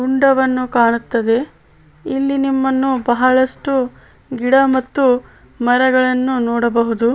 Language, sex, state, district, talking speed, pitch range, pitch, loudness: Kannada, female, Karnataka, Bellary, 75 wpm, 240-265 Hz, 255 Hz, -16 LUFS